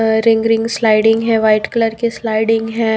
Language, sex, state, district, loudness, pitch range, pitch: Hindi, female, Punjab, Pathankot, -14 LUFS, 220-225 Hz, 225 Hz